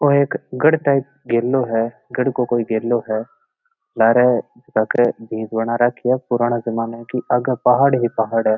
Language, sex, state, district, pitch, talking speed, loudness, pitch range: Marwari, male, Rajasthan, Nagaur, 120 Hz, 175 wpm, -18 LUFS, 115-130 Hz